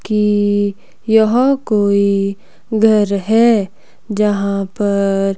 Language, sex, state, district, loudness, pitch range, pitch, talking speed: Hindi, female, Himachal Pradesh, Shimla, -15 LUFS, 200-220 Hz, 205 Hz, 80 wpm